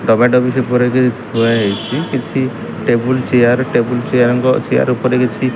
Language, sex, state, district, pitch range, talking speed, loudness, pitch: Odia, male, Odisha, Khordha, 120-130 Hz, 150 wpm, -14 LUFS, 125 Hz